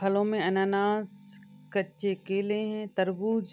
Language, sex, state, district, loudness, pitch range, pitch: Hindi, female, Uttar Pradesh, Deoria, -29 LUFS, 195-210 Hz, 200 Hz